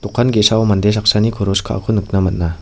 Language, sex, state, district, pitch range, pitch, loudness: Garo, male, Meghalaya, West Garo Hills, 95-110 Hz, 105 Hz, -15 LUFS